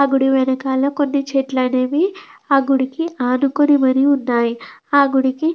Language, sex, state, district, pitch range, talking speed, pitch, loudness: Telugu, female, Andhra Pradesh, Krishna, 260-285 Hz, 150 wpm, 270 Hz, -17 LUFS